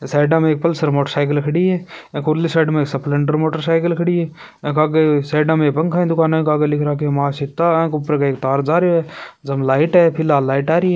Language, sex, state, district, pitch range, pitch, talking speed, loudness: Hindi, male, Rajasthan, Churu, 145-165 Hz, 155 Hz, 225 wpm, -17 LUFS